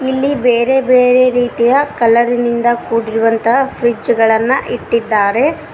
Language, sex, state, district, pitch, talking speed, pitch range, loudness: Kannada, female, Karnataka, Koppal, 240 Hz, 105 wpm, 230-260 Hz, -13 LUFS